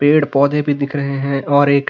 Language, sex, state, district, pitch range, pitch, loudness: Hindi, male, Uttarakhand, Uttarkashi, 140-145 Hz, 140 Hz, -16 LUFS